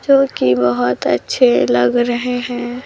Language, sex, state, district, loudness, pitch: Hindi, female, Chhattisgarh, Raipur, -15 LUFS, 240 Hz